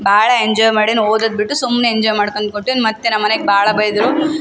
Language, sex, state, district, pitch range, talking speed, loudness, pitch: Kannada, female, Karnataka, Raichur, 210-235 Hz, 205 wpm, -14 LUFS, 220 Hz